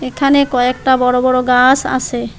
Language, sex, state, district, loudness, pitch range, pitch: Bengali, female, West Bengal, Alipurduar, -13 LUFS, 250-265 Hz, 255 Hz